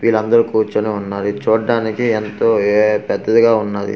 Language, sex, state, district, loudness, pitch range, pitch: Telugu, male, Andhra Pradesh, Manyam, -16 LUFS, 105-115 Hz, 110 Hz